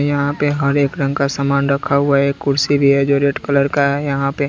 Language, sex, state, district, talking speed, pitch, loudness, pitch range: Hindi, male, Bihar, West Champaran, 280 wpm, 140 Hz, -16 LUFS, 140-145 Hz